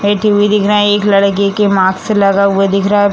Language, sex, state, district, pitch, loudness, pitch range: Hindi, female, Bihar, Jamui, 200 Hz, -11 LUFS, 195-205 Hz